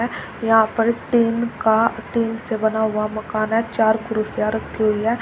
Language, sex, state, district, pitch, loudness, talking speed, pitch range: Hindi, female, Uttar Pradesh, Shamli, 225 Hz, -20 LUFS, 170 wpm, 220-230 Hz